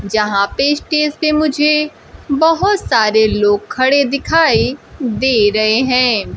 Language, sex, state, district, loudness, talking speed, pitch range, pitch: Hindi, female, Bihar, Kaimur, -14 LUFS, 125 wpm, 215-300 Hz, 260 Hz